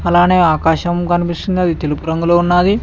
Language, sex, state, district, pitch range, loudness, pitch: Telugu, male, Telangana, Mahabubabad, 165-175 Hz, -14 LUFS, 175 Hz